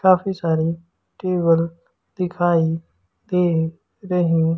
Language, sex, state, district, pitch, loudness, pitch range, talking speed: Hindi, male, Madhya Pradesh, Umaria, 170 Hz, -21 LUFS, 165-180 Hz, 80 wpm